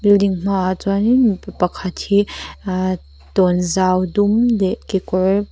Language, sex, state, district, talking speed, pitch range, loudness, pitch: Mizo, female, Mizoram, Aizawl, 120 wpm, 185-200 Hz, -18 LUFS, 190 Hz